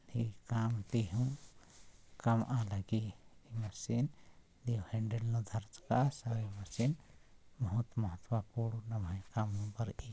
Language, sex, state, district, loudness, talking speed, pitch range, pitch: Sadri, male, Chhattisgarh, Jashpur, -38 LUFS, 100 wpm, 100-115 Hz, 115 Hz